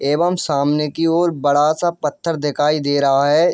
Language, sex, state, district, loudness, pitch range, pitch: Hindi, male, Jharkhand, Jamtara, -17 LUFS, 145-165 Hz, 150 Hz